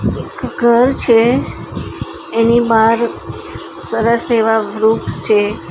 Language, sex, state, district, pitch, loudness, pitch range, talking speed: Gujarati, female, Gujarat, Valsad, 230 Hz, -14 LUFS, 220-235 Hz, 95 wpm